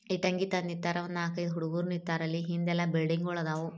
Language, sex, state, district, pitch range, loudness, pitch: Kannada, female, Karnataka, Bijapur, 165-175 Hz, -32 LUFS, 175 Hz